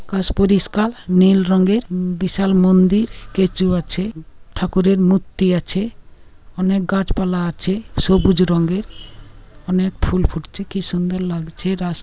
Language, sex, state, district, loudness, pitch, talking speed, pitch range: Bengali, female, West Bengal, Paschim Medinipur, -17 LUFS, 185 Hz, 115 wpm, 180-195 Hz